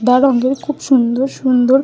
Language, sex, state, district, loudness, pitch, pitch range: Bengali, female, West Bengal, Malda, -14 LUFS, 260 Hz, 250-270 Hz